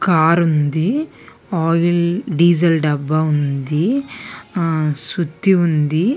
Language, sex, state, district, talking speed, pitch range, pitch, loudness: Telugu, female, Andhra Pradesh, Visakhapatnam, 85 wpm, 155-175 Hz, 165 Hz, -17 LUFS